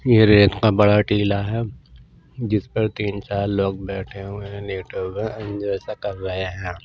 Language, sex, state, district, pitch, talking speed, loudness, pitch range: Hindi, male, Maharashtra, Washim, 100 Hz, 185 wpm, -21 LUFS, 100-105 Hz